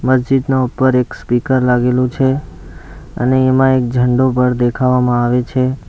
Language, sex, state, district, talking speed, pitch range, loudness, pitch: Gujarati, male, Gujarat, Valsad, 145 wpm, 125-130 Hz, -14 LUFS, 125 Hz